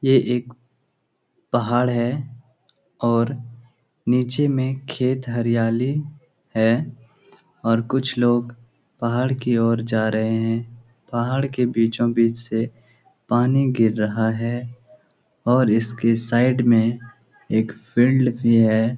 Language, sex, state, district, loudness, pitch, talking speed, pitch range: Hindi, male, Bihar, Lakhisarai, -21 LUFS, 120 Hz, 110 wpm, 115-130 Hz